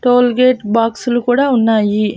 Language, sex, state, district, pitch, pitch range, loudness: Telugu, female, Andhra Pradesh, Annamaya, 240 Hz, 220-250 Hz, -13 LUFS